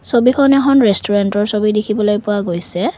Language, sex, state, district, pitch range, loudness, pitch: Assamese, female, Assam, Kamrup Metropolitan, 205-245 Hz, -14 LUFS, 210 Hz